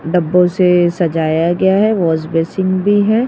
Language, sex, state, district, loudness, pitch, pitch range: Hindi, female, Uttar Pradesh, Jyotiba Phule Nagar, -14 LUFS, 180 Hz, 165-190 Hz